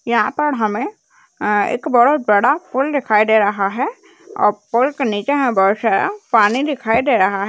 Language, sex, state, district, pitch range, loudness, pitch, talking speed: Hindi, female, Uttarakhand, Uttarkashi, 210-295 Hz, -16 LUFS, 250 Hz, 175 wpm